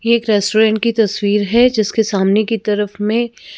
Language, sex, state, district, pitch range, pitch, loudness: Hindi, female, Madhya Pradesh, Bhopal, 210-230 Hz, 215 Hz, -15 LUFS